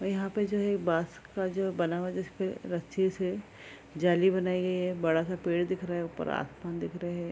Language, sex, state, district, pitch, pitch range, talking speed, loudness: Hindi, female, Bihar, Saharsa, 180 Hz, 170-190 Hz, 240 wpm, -31 LUFS